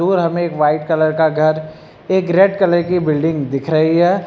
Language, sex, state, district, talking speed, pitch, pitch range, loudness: Hindi, male, Uttar Pradesh, Lucknow, 210 wpm, 160 Hz, 155-180 Hz, -15 LUFS